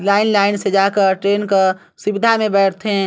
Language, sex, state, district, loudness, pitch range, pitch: Chhattisgarhi, female, Chhattisgarh, Sarguja, -16 LUFS, 195-205 Hz, 200 Hz